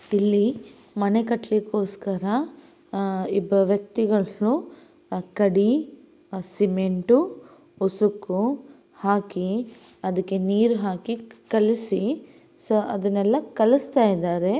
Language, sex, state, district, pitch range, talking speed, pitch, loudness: Kannada, female, Karnataka, Raichur, 195-235 Hz, 75 wpm, 210 Hz, -23 LUFS